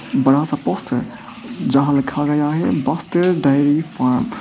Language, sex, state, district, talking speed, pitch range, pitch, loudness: Hindi, male, Arunachal Pradesh, Papum Pare, 150 wpm, 140-180 Hz, 150 Hz, -18 LUFS